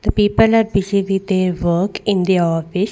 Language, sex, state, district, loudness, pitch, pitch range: English, female, Karnataka, Bangalore, -16 LUFS, 195 Hz, 180-205 Hz